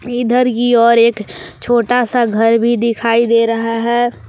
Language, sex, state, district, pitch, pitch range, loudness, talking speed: Hindi, female, Jharkhand, Palamu, 235 Hz, 230-240 Hz, -13 LUFS, 170 wpm